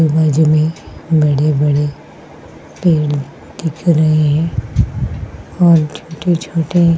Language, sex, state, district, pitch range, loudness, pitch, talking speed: Hindi, female, Uttarakhand, Tehri Garhwal, 145-165 Hz, -15 LUFS, 155 Hz, 85 wpm